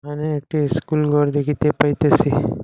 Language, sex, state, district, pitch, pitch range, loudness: Bengali, male, Assam, Hailakandi, 150 Hz, 145-150 Hz, -19 LUFS